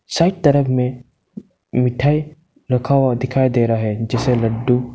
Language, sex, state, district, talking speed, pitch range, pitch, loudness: Hindi, male, Arunachal Pradesh, Lower Dibang Valley, 145 wpm, 125-150 Hz, 130 Hz, -18 LUFS